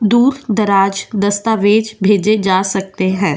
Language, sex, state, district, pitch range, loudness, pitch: Hindi, female, Goa, North and South Goa, 195-215 Hz, -14 LUFS, 205 Hz